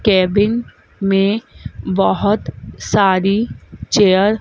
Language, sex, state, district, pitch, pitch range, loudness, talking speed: Hindi, female, Madhya Pradesh, Dhar, 200 Hz, 185-210 Hz, -16 LUFS, 80 wpm